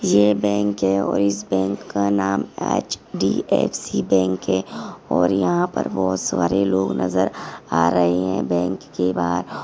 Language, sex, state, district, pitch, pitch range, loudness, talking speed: Hindi, female, Maharashtra, Aurangabad, 95 Hz, 90-100 Hz, -20 LUFS, 170 wpm